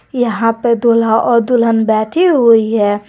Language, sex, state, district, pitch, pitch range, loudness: Hindi, female, Jharkhand, Garhwa, 230 Hz, 220-240 Hz, -12 LUFS